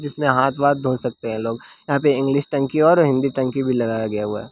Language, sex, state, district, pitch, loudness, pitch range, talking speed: Hindi, male, Bihar, West Champaran, 135 Hz, -20 LUFS, 120-140 Hz, 240 wpm